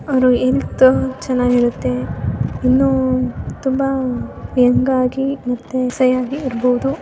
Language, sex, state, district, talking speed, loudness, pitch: Kannada, female, Karnataka, Chamarajanagar, 75 wpm, -17 LUFS, 250 Hz